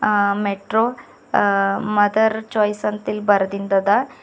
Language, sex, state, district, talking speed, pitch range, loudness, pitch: Kannada, female, Karnataka, Bidar, 100 wpm, 200-215 Hz, -19 LUFS, 205 Hz